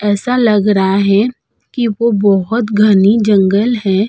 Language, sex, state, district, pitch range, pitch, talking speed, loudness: Hindi, female, Uttar Pradesh, Budaun, 200-230 Hz, 210 Hz, 130 wpm, -12 LUFS